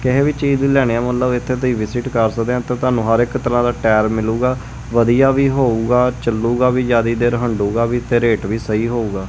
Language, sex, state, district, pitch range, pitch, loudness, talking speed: Punjabi, male, Punjab, Kapurthala, 115-125 Hz, 120 Hz, -16 LUFS, 215 wpm